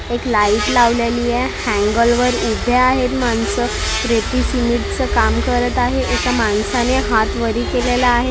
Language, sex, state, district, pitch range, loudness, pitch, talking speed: Marathi, female, Maharashtra, Mumbai Suburban, 225-250 Hz, -16 LUFS, 240 Hz, 145 wpm